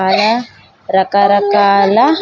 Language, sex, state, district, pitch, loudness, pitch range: Telugu, female, Andhra Pradesh, Sri Satya Sai, 200 Hz, -12 LUFS, 200-220 Hz